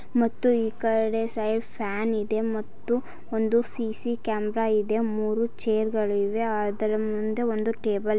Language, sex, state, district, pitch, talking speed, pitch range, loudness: Kannada, female, Karnataka, Gulbarga, 220 Hz, 140 wpm, 215-230 Hz, -26 LUFS